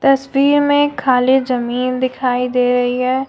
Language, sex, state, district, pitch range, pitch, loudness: Hindi, female, Jharkhand, Deoghar, 250-275 Hz, 255 Hz, -15 LUFS